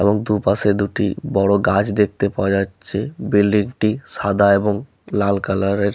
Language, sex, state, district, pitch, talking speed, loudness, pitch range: Bengali, male, West Bengal, Malda, 100 Hz, 150 wpm, -19 LUFS, 100-105 Hz